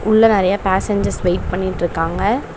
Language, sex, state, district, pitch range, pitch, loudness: Tamil, female, Tamil Nadu, Chennai, 180-205 Hz, 190 Hz, -17 LUFS